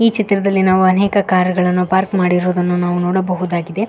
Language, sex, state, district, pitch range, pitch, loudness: Kannada, female, Karnataka, Koppal, 180-195 Hz, 185 Hz, -15 LUFS